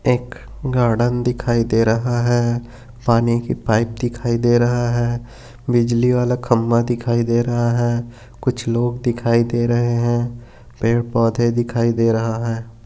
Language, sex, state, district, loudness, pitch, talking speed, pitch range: Hindi, male, Maharashtra, Aurangabad, -19 LUFS, 120 Hz, 150 wpm, 115-120 Hz